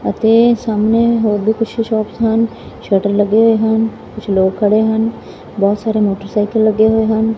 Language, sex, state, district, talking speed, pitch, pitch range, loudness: Punjabi, female, Punjab, Fazilka, 170 wpm, 220 Hz, 210-225 Hz, -14 LUFS